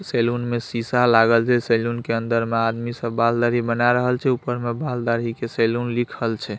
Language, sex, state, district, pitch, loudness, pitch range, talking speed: Maithili, male, Bihar, Saharsa, 120 Hz, -21 LUFS, 115-120 Hz, 200 wpm